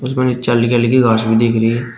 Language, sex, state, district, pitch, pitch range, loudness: Hindi, male, Uttar Pradesh, Shamli, 120 Hz, 115-125 Hz, -14 LUFS